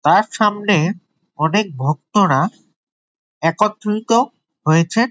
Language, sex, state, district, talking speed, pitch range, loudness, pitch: Bengali, male, West Bengal, Jalpaiguri, 70 wpm, 165-210 Hz, -17 LUFS, 200 Hz